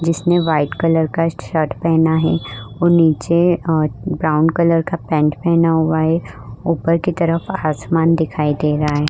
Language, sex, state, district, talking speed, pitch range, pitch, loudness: Hindi, female, Uttar Pradesh, Budaun, 170 wpm, 155-165 Hz, 160 Hz, -17 LUFS